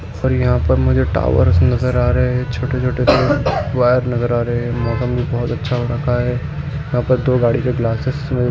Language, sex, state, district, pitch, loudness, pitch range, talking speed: Hindi, male, Andhra Pradesh, Guntur, 125 Hz, -17 LUFS, 120-125 Hz, 75 wpm